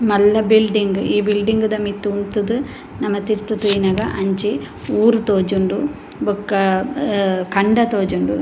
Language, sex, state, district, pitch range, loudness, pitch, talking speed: Tulu, female, Karnataka, Dakshina Kannada, 195-215 Hz, -18 LUFS, 205 Hz, 120 wpm